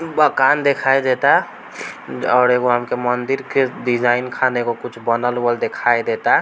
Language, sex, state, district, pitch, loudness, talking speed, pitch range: Bhojpuri, male, Bihar, East Champaran, 125 Hz, -17 LUFS, 140 wpm, 120-135 Hz